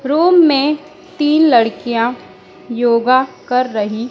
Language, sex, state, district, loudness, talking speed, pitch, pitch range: Hindi, female, Madhya Pradesh, Dhar, -14 LUFS, 100 wpm, 255 Hz, 235-305 Hz